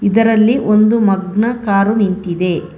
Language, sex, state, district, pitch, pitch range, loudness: Kannada, female, Karnataka, Bangalore, 210 Hz, 190-220 Hz, -13 LUFS